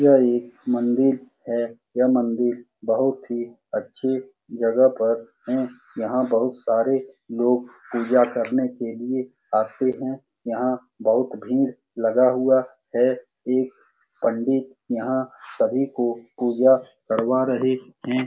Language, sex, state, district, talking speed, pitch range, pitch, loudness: Hindi, male, Bihar, Saran, 120 wpm, 120-130 Hz, 125 Hz, -23 LUFS